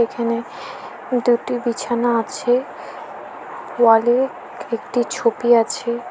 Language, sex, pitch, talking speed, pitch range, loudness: Bengali, female, 240 Hz, 90 wpm, 235-245 Hz, -19 LUFS